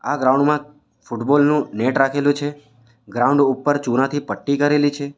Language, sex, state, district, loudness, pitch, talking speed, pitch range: Gujarati, male, Gujarat, Valsad, -18 LUFS, 140 Hz, 160 wpm, 130-145 Hz